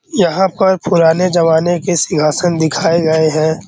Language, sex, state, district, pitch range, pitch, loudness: Hindi, male, Bihar, Araria, 160-185 Hz, 170 Hz, -13 LUFS